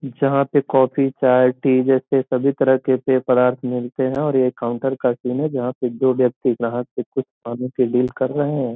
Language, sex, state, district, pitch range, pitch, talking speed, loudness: Hindi, male, Bihar, Gopalganj, 125-135 Hz, 130 Hz, 205 wpm, -19 LUFS